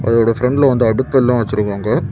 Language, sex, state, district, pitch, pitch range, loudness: Tamil, male, Tamil Nadu, Kanyakumari, 120 Hz, 110-130 Hz, -15 LUFS